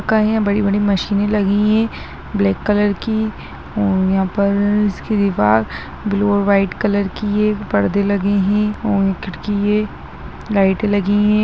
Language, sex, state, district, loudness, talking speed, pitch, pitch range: Hindi, female, Bihar, Begusarai, -17 LUFS, 175 wpm, 205 Hz, 200-210 Hz